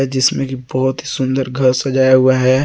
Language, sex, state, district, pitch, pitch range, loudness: Hindi, male, Jharkhand, Garhwa, 130 Hz, 130-135 Hz, -15 LUFS